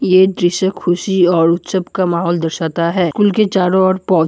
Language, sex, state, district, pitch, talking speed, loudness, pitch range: Hindi, male, Assam, Kamrup Metropolitan, 180 Hz, 185 wpm, -14 LUFS, 170-190 Hz